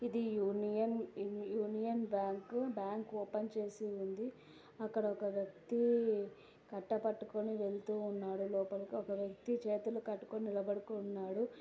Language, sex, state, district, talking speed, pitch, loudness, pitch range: Telugu, female, Andhra Pradesh, Anantapur, 110 wpm, 210 Hz, -40 LUFS, 200-220 Hz